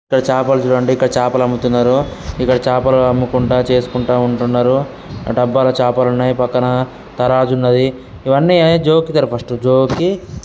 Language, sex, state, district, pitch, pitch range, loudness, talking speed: Telugu, male, Telangana, Karimnagar, 125 Hz, 125-130 Hz, -14 LUFS, 140 wpm